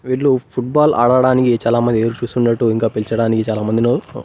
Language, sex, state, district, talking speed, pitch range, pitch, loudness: Telugu, male, Andhra Pradesh, Annamaya, 140 wpm, 115-130 Hz, 120 Hz, -16 LUFS